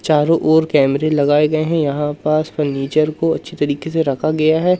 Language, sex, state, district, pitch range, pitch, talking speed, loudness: Hindi, male, Madhya Pradesh, Umaria, 145-160 Hz, 155 Hz, 200 wpm, -16 LUFS